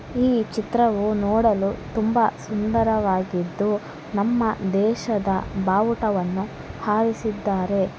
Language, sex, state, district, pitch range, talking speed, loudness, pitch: Kannada, female, Karnataka, Bellary, 195-225 Hz, 70 wpm, -23 LUFS, 210 Hz